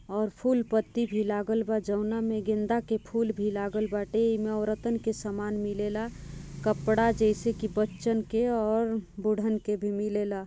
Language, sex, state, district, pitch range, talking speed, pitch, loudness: Bhojpuri, female, Bihar, Gopalganj, 210-225 Hz, 170 wpm, 215 Hz, -29 LUFS